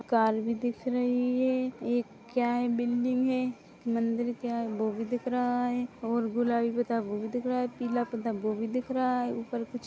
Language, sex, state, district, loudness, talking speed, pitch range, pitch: Hindi, female, Chhattisgarh, Rajnandgaon, -30 LUFS, 215 wpm, 230-250 Hz, 240 Hz